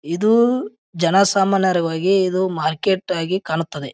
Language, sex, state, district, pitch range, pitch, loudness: Kannada, male, Karnataka, Bijapur, 165-195 Hz, 185 Hz, -18 LUFS